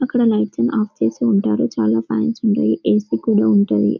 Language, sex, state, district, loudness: Telugu, female, Telangana, Karimnagar, -17 LUFS